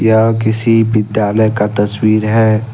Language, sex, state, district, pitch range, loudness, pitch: Hindi, male, Jharkhand, Ranchi, 105-110 Hz, -13 LUFS, 110 Hz